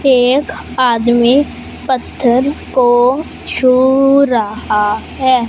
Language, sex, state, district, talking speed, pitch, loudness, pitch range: Hindi, female, Punjab, Fazilka, 75 wpm, 255 Hz, -13 LUFS, 240-265 Hz